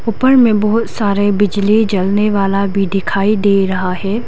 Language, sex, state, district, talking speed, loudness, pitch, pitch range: Hindi, female, Arunachal Pradesh, Lower Dibang Valley, 170 wpm, -14 LUFS, 205 Hz, 195-215 Hz